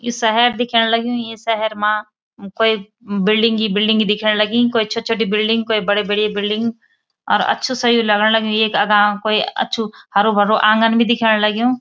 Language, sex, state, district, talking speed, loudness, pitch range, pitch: Garhwali, female, Uttarakhand, Uttarkashi, 185 wpm, -16 LUFS, 210-230 Hz, 220 Hz